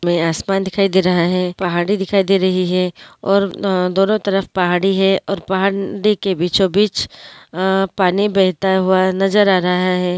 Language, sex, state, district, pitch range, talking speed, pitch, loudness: Hindi, female, Uttarakhand, Uttarkashi, 180-195 Hz, 165 wpm, 190 Hz, -16 LUFS